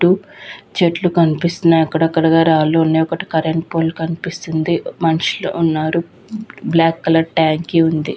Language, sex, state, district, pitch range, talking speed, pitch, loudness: Telugu, female, Andhra Pradesh, Visakhapatnam, 160-170 Hz, 125 wpm, 165 Hz, -16 LUFS